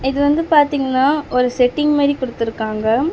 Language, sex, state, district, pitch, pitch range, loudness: Tamil, female, Tamil Nadu, Chennai, 270 Hz, 250-290 Hz, -16 LUFS